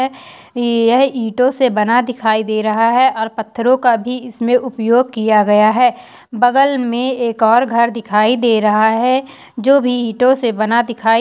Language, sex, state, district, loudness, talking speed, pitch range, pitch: Hindi, female, Uttarakhand, Uttarkashi, -14 LUFS, 170 wpm, 225-255 Hz, 235 Hz